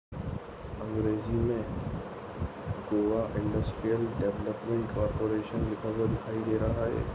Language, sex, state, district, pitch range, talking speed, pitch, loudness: Hindi, male, Goa, North and South Goa, 105-115 Hz, 100 wpm, 110 Hz, -32 LUFS